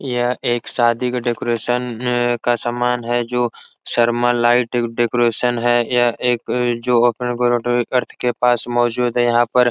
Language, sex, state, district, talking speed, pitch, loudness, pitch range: Hindi, male, Uttar Pradesh, Etah, 150 wpm, 120 Hz, -18 LUFS, 120-125 Hz